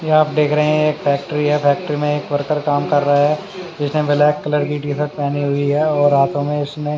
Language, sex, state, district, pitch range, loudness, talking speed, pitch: Hindi, male, Haryana, Charkhi Dadri, 145-150 Hz, -17 LUFS, 230 wpm, 150 Hz